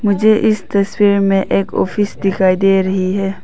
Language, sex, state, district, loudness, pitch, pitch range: Hindi, female, Arunachal Pradesh, Papum Pare, -14 LUFS, 195 Hz, 190-205 Hz